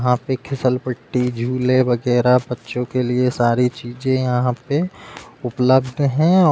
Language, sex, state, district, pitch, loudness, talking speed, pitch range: Hindi, male, Uttar Pradesh, Deoria, 125 Hz, -19 LUFS, 145 wpm, 125-130 Hz